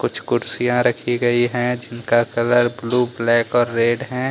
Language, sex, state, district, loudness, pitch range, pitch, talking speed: Hindi, male, Jharkhand, Deoghar, -19 LUFS, 120-125 Hz, 120 Hz, 165 wpm